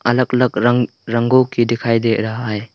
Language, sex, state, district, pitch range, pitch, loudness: Hindi, male, Arunachal Pradesh, Lower Dibang Valley, 115-125 Hz, 120 Hz, -16 LUFS